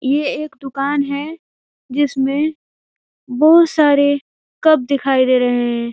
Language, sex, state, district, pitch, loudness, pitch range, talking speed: Hindi, female, Uttar Pradesh, Ghazipur, 280 Hz, -16 LUFS, 270-300 Hz, 120 wpm